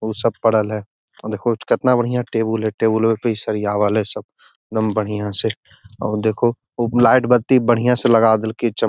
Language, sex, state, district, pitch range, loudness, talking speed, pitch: Magahi, male, Bihar, Gaya, 110-120 Hz, -18 LUFS, 195 wpm, 110 Hz